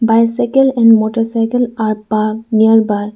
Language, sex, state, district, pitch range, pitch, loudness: English, female, Arunachal Pradesh, Lower Dibang Valley, 215-230 Hz, 225 Hz, -13 LUFS